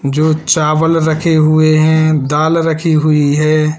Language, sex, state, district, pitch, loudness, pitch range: Hindi, male, Uttar Pradesh, Lalitpur, 155 Hz, -12 LUFS, 155-160 Hz